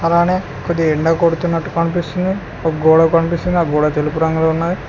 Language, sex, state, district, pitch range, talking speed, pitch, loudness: Telugu, male, Telangana, Mahabubabad, 160-170 Hz, 160 wpm, 165 Hz, -16 LUFS